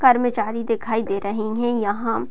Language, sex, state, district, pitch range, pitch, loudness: Hindi, female, Bihar, Gopalganj, 215-240 Hz, 225 Hz, -22 LUFS